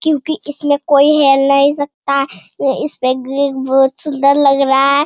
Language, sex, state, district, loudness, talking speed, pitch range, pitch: Hindi, female, Bihar, Jamui, -14 LUFS, 155 wpm, 270-290 Hz, 280 Hz